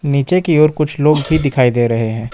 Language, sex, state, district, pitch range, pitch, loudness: Hindi, male, Jharkhand, Ranchi, 120-155 Hz, 140 Hz, -14 LUFS